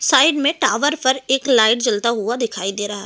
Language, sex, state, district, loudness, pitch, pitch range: Hindi, female, Delhi, New Delhi, -17 LUFS, 250 Hz, 220-285 Hz